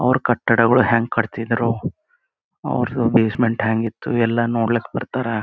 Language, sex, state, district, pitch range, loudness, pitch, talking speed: Kannada, male, Karnataka, Gulbarga, 115-125 Hz, -19 LUFS, 115 Hz, 145 wpm